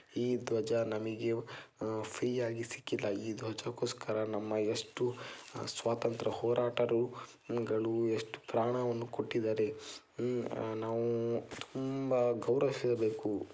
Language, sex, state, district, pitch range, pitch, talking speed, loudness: Kannada, male, Karnataka, Dakshina Kannada, 110-120 Hz, 115 Hz, 60 wpm, -35 LUFS